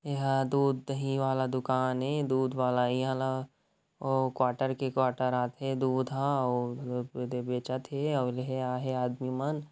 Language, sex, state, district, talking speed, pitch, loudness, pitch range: Chhattisgarhi, male, Chhattisgarh, Rajnandgaon, 135 wpm, 130 Hz, -31 LUFS, 125-135 Hz